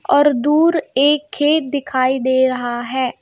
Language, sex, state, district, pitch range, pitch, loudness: Hindi, female, Madhya Pradesh, Bhopal, 260-295 Hz, 275 Hz, -16 LUFS